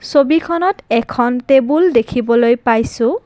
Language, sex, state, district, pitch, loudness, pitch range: Assamese, female, Assam, Kamrup Metropolitan, 250 Hz, -14 LUFS, 235-315 Hz